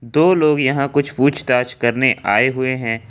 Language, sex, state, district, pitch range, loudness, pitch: Hindi, male, Jharkhand, Ranchi, 120-140 Hz, -16 LUFS, 130 Hz